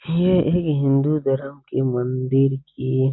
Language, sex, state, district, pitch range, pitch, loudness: Hindi, male, Bihar, Saran, 130-155 Hz, 135 Hz, -21 LUFS